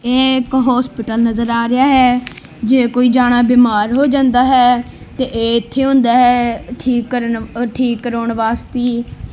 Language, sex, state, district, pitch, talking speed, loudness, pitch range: Punjabi, male, Punjab, Kapurthala, 245 Hz, 160 wpm, -14 LUFS, 235-255 Hz